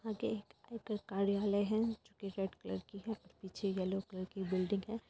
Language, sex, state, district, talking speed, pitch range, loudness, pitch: Hindi, female, Bihar, Purnia, 210 wpm, 190-215 Hz, -39 LUFS, 200 Hz